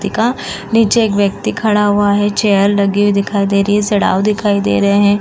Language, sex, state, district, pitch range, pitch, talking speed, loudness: Hindi, female, Uttar Pradesh, Varanasi, 200-210 Hz, 205 Hz, 220 wpm, -13 LUFS